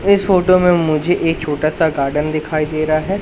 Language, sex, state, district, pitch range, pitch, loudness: Hindi, male, Madhya Pradesh, Katni, 155-180 Hz, 160 Hz, -16 LUFS